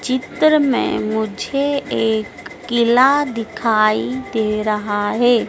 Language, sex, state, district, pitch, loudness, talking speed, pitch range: Hindi, female, Madhya Pradesh, Dhar, 225 Hz, -17 LUFS, 100 wpm, 215-260 Hz